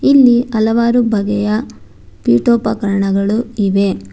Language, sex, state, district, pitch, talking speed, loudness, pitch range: Kannada, female, Karnataka, Bangalore, 210 Hz, 70 wpm, -14 LUFS, 195-235 Hz